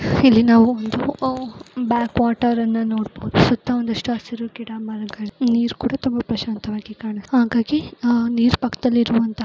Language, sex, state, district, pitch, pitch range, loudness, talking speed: Kannada, female, Karnataka, Gulbarga, 235 Hz, 225-245 Hz, -20 LUFS, 125 wpm